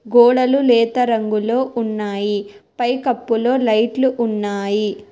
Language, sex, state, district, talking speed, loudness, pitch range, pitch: Telugu, female, Telangana, Hyderabad, 95 wpm, -17 LUFS, 210-250 Hz, 230 Hz